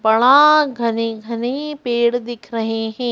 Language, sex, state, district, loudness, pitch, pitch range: Hindi, female, Madhya Pradesh, Bhopal, -17 LUFS, 235 Hz, 225-255 Hz